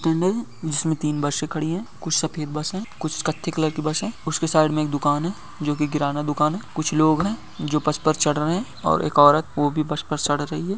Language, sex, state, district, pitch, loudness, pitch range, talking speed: Hindi, male, Bihar, Begusarai, 155 Hz, -22 LUFS, 150-165 Hz, 260 wpm